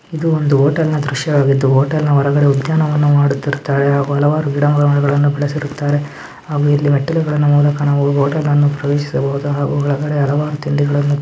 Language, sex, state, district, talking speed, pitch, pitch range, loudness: Kannada, male, Karnataka, Dharwad, 125 wpm, 145 Hz, 140-150 Hz, -15 LUFS